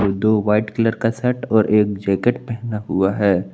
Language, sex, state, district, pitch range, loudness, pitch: Hindi, male, Jharkhand, Palamu, 100-115 Hz, -19 LUFS, 105 Hz